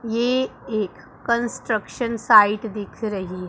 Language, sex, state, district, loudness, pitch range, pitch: Hindi, female, Punjab, Pathankot, -21 LUFS, 205-235 Hz, 220 Hz